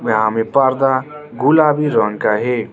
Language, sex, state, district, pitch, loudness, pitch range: Hindi, male, Arunachal Pradesh, Lower Dibang Valley, 130 Hz, -15 LUFS, 120-150 Hz